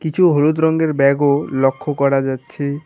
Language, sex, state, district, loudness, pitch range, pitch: Bengali, male, West Bengal, Alipurduar, -16 LUFS, 140-155 Hz, 145 Hz